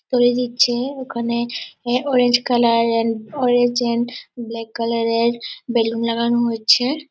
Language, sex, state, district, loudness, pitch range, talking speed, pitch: Bengali, female, West Bengal, Purulia, -19 LUFS, 230-250 Hz, 120 wpm, 240 Hz